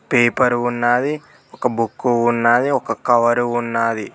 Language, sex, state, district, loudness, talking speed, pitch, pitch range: Telugu, male, Telangana, Mahabubabad, -18 LUFS, 115 wpm, 120 Hz, 115-120 Hz